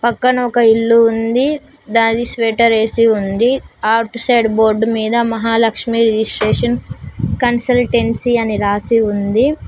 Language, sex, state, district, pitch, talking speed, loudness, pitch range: Telugu, female, Telangana, Mahabubabad, 230 Hz, 110 wpm, -14 LUFS, 220-235 Hz